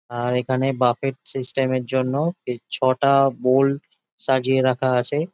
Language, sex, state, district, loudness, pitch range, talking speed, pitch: Bengali, male, West Bengal, Jalpaiguri, -21 LUFS, 125-135 Hz, 125 wpm, 130 Hz